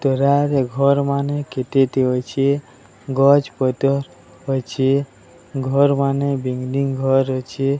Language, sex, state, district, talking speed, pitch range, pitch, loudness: Odia, male, Odisha, Sambalpur, 100 wpm, 130-140 Hz, 135 Hz, -19 LUFS